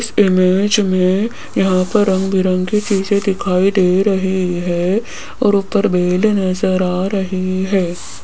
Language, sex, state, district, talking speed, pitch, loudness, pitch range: Hindi, female, Rajasthan, Jaipur, 140 wpm, 190 Hz, -15 LUFS, 185-200 Hz